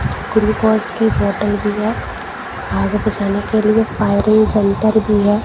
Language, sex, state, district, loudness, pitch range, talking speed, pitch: Hindi, female, Punjab, Kapurthala, -16 LUFS, 205-220 Hz, 145 wpm, 215 Hz